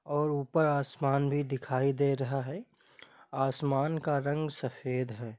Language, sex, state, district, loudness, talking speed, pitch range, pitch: Hindi, male, Jharkhand, Sahebganj, -31 LUFS, 135 wpm, 135-145 Hz, 140 Hz